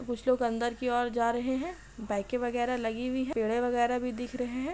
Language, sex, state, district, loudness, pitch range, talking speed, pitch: Hindi, female, Bihar, Madhepura, -31 LUFS, 235-255 Hz, 240 wpm, 245 Hz